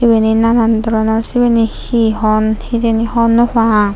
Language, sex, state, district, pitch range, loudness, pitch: Chakma, female, Tripura, Unakoti, 220-230 Hz, -13 LUFS, 225 Hz